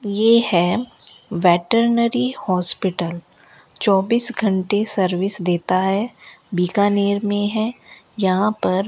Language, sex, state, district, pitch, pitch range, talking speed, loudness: Hindi, female, Rajasthan, Bikaner, 200 Hz, 185-220 Hz, 100 wpm, -19 LUFS